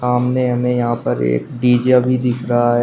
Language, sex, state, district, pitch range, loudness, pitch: Hindi, male, Uttar Pradesh, Shamli, 120-125 Hz, -16 LUFS, 125 Hz